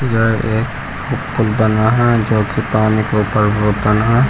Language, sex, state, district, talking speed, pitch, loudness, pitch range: Hindi, male, Uttarakhand, Uttarkashi, 195 wpm, 110 Hz, -15 LUFS, 110-115 Hz